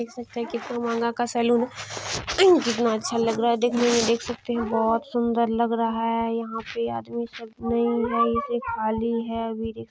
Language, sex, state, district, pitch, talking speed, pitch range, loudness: Maithili, female, Bihar, Bhagalpur, 235 Hz, 210 wpm, 230-235 Hz, -24 LUFS